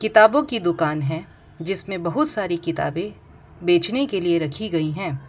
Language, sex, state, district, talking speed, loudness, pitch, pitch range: Hindi, female, Gujarat, Valsad, 160 wpm, -22 LUFS, 175 Hz, 165-215 Hz